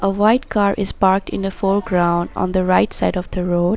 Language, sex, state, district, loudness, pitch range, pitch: English, female, Assam, Sonitpur, -18 LUFS, 180-200 Hz, 195 Hz